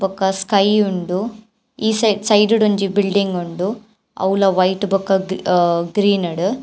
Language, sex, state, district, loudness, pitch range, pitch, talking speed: Tulu, female, Karnataka, Dakshina Kannada, -17 LUFS, 190-215 Hz, 195 Hz, 135 wpm